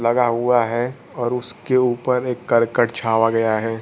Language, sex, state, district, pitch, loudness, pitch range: Hindi, male, Bihar, Kaimur, 120 Hz, -19 LUFS, 115-125 Hz